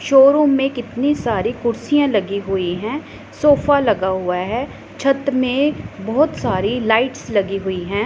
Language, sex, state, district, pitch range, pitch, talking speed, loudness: Hindi, female, Punjab, Pathankot, 200-275 Hz, 235 Hz, 150 wpm, -18 LUFS